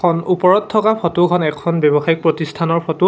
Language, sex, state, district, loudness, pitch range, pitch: Assamese, male, Assam, Sonitpur, -16 LUFS, 160-180 Hz, 170 Hz